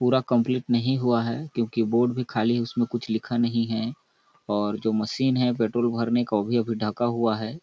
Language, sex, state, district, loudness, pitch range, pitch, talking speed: Hindi, male, Chhattisgarh, Balrampur, -25 LUFS, 110-120 Hz, 120 Hz, 220 wpm